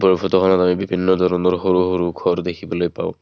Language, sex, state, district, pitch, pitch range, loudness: Assamese, male, Assam, Kamrup Metropolitan, 90 Hz, 90-95 Hz, -18 LUFS